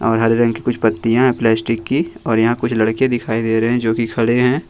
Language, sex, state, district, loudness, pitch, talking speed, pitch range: Hindi, male, Jharkhand, Ranchi, -16 LUFS, 115 Hz, 255 wpm, 115-120 Hz